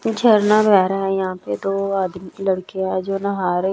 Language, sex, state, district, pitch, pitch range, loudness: Hindi, female, Chhattisgarh, Raipur, 195 Hz, 185-195 Hz, -19 LUFS